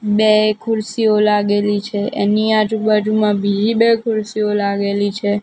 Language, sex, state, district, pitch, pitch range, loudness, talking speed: Gujarati, female, Gujarat, Gandhinagar, 210 Hz, 205-215 Hz, -16 LUFS, 120 wpm